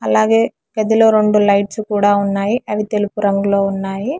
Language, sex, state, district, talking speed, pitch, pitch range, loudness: Telugu, female, Telangana, Hyderabad, 145 wpm, 205 Hz, 200-220 Hz, -15 LUFS